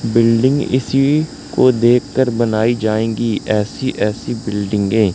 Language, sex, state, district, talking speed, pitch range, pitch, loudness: Hindi, male, Madhya Pradesh, Katni, 115 wpm, 110-130 Hz, 115 Hz, -16 LUFS